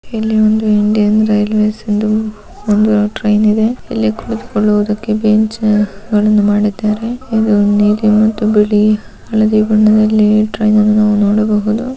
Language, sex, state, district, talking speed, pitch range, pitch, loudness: Kannada, female, Karnataka, Dharwad, 110 wpm, 210-215 Hz, 215 Hz, -13 LUFS